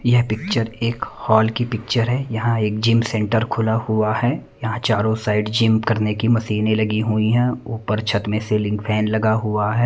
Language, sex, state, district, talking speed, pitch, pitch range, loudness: Hindi, male, Punjab, Kapurthala, 195 wpm, 110 Hz, 110-115 Hz, -20 LUFS